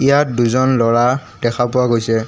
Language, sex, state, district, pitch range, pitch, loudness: Assamese, male, Assam, Kamrup Metropolitan, 115-130 Hz, 120 Hz, -15 LUFS